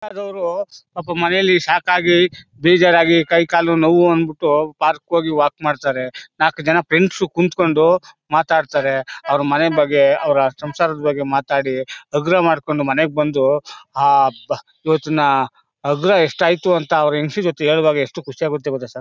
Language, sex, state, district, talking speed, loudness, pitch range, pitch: Kannada, male, Karnataka, Mysore, 135 wpm, -17 LUFS, 145-175 Hz, 160 Hz